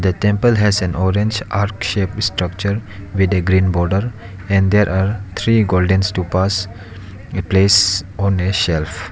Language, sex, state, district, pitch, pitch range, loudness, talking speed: English, male, Arunachal Pradesh, Lower Dibang Valley, 95 Hz, 95-100 Hz, -17 LUFS, 140 wpm